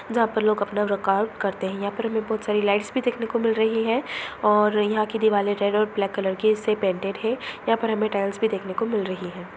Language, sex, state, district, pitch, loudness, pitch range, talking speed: Hindi, female, Bihar, Jamui, 210 Hz, -24 LUFS, 200-225 Hz, 255 wpm